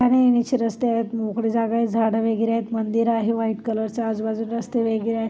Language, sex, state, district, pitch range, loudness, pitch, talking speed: Marathi, female, Maharashtra, Chandrapur, 225-230 Hz, -22 LUFS, 230 Hz, 215 wpm